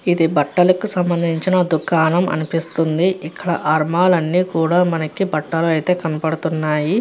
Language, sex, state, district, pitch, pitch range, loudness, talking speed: Telugu, female, Andhra Pradesh, Chittoor, 165 Hz, 160-180 Hz, -18 LUFS, 120 wpm